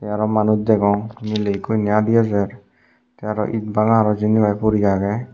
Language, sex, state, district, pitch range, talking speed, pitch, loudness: Chakma, male, Tripura, Unakoti, 105-110 Hz, 215 wpm, 105 Hz, -18 LUFS